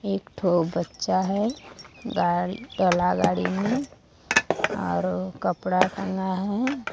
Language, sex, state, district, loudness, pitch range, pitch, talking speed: Hindi, female, Odisha, Sambalpur, -25 LUFS, 175-200 Hz, 185 Hz, 105 wpm